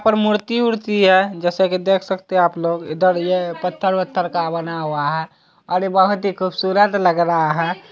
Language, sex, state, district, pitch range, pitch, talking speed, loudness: Hindi, male, Bihar, Araria, 170-195 Hz, 185 Hz, 180 wpm, -18 LUFS